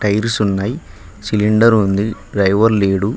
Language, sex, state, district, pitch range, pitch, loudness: Telugu, male, Telangana, Mahabubabad, 100-110 Hz, 105 Hz, -15 LUFS